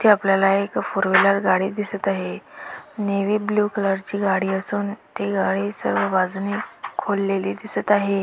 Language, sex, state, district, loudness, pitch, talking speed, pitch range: Marathi, female, Maharashtra, Dhule, -22 LUFS, 200 Hz, 145 wpm, 195-205 Hz